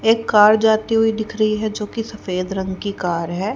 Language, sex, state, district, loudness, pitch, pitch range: Hindi, female, Haryana, Rohtak, -18 LUFS, 215 Hz, 190-220 Hz